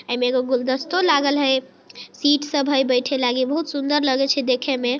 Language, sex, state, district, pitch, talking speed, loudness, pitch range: Maithili, female, Bihar, Sitamarhi, 270 Hz, 190 wpm, -20 LUFS, 255-290 Hz